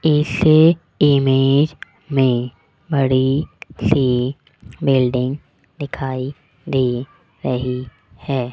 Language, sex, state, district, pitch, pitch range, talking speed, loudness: Hindi, male, Rajasthan, Jaipur, 135 Hz, 125-145 Hz, 70 wpm, -18 LUFS